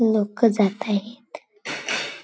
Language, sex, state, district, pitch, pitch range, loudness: Marathi, female, Maharashtra, Chandrapur, 225 Hz, 205-240 Hz, -23 LUFS